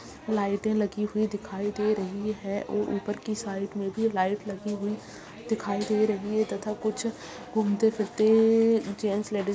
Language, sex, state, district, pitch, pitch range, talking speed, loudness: Hindi, female, Bihar, Saharsa, 210 Hz, 200-215 Hz, 165 wpm, -28 LUFS